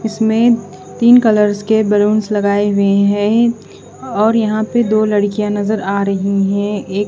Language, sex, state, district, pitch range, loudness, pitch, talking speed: Hindi, female, Bihar, Katihar, 200-220 Hz, -14 LUFS, 210 Hz, 155 wpm